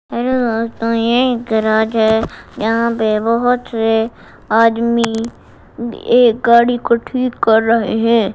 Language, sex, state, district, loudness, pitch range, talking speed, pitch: Hindi, female, Gujarat, Gandhinagar, -15 LUFS, 225-240 Hz, 130 wpm, 230 Hz